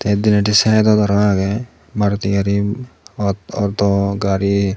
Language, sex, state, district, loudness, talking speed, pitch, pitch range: Chakma, male, Tripura, Dhalai, -16 LUFS, 115 wpm, 100 Hz, 100-105 Hz